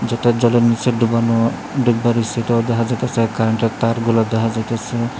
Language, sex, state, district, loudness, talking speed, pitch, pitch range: Bengali, male, Tripura, West Tripura, -17 LUFS, 160 wpm, 115 Hz, 115-120 Hz